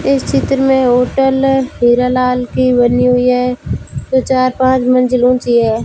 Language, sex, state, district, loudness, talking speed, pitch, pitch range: Hindi, female, Rajasthan, Bikaner, -12 LUFS, 155 wpm, 250 Hz, 250-260 Hz